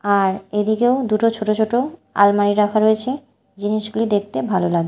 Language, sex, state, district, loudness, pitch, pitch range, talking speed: Bengali, female, Odisha, Malkangiri, -18 LUFS, 215 Hz, 200-225 Hz, 150 wpm